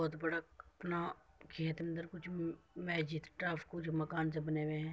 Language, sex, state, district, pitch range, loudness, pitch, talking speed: Hindi, female, Uttar Pradesh, Muzaffarnagar, 155-170 Hz, -41 LUFS, 165 Hz, 170 wpm